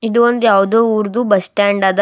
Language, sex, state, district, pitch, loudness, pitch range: Kannada, female, Karnataka, Bidar, 215 Hz, -13 LUFS, 200-230 Hz